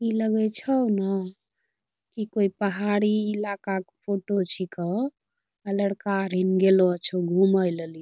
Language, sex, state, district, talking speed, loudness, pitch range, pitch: Angika, female, Bihar, Bhagalpur, 135 wpm, -25 LUFS, 185-210 Hz, 195 Hz